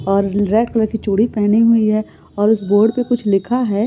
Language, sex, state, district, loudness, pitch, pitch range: Hindi, female, Uttar Pradesh, Etah, -16 LUFS, 215 Hz, 205-225 Hz